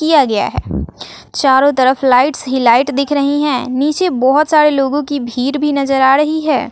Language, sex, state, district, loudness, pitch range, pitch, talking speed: Hindi, female, Bihar, West Champaran, -13 LUFS, 260-295 Hz, 275 Hz, 195 wpm